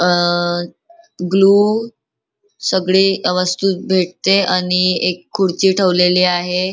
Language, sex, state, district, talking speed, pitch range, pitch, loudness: Marathi, female, Maharashtra, Nagpur, 90 wpm, 180-195 Hz, 185 Hz, -15 LUFS